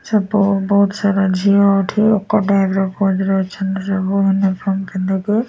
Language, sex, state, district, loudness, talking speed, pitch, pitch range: Odia, female, Odisha, Nuapada, -16 LUFS, 110 wpm, 195 Hz, 195-200 Hz